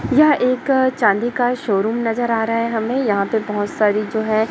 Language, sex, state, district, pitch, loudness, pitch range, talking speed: Hindi, female, Chhattisgarh, Raipur, 225 Hz, -18 LUFS, 215-250 Hz, 215 wpm